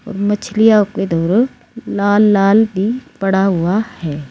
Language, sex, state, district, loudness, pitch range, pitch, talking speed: Hindi, female, Uttar Pradesh, Saharanpur, -15 LUFS, 190-220 Hz, 205 Hz, 95 wpm